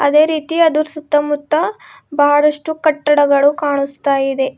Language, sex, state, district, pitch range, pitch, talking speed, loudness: Kannada, female, Karnataka, Bidar, 285-310 Hz, 295 Hz, 90 wpm, -15 LUFS